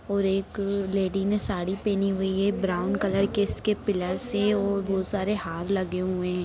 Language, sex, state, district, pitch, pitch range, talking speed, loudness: Hindi, female, Bihar, Darbhanga, 195 Hz, 190-200 Hz, 195 wpm, -26 LUFS